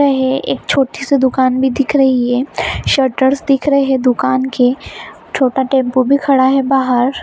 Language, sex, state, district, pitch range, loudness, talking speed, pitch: Hindi, female, Bihar, Saran, 260-275 Hz, -14 LUFS, 185 wpm, 265 Hz